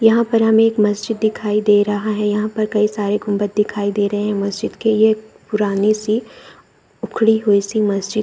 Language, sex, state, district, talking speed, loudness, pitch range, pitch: Hindi, female, Bihar, Saran, 205 wpm, -17 LUFS, 205-220 Hz, 210 Hz